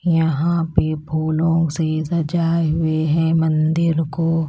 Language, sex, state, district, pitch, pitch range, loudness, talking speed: Hindi, female, Chhattisgarh, Raipur, 160 Hz, 155-165 Hz, -19 LUFS, 120 wpm